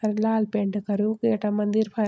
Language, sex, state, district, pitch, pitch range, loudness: Garhwali, female, Uttarakhand, Tehri Garhwal, 215 Hz, 210-220 Hz, -25 LUFS